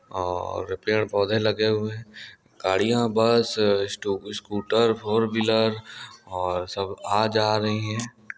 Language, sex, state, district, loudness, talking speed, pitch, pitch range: Hindi, male, Bihar, Muzaffarpur, -24 LUFS, 130 wpm, 110 Hz, 100-110 Hz